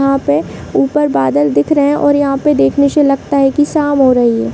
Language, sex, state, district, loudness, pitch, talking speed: Hindi, female, Bihar, Purnia, -12 LUFS, 275 Hz, 240 wpm